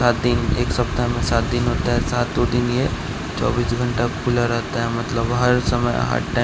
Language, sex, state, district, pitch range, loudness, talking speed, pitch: Hindi, male, Bihar, West Champaran, 115-120 Hz, -20 LUFS, 195 wpm, 120 Hz